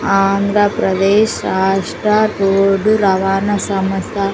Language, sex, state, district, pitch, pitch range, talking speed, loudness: Telugu, female, Andhra Pradesh, Sri Satya Sai, 195 Hz, 195-205 Hz, 85 wpm, -14 LUFS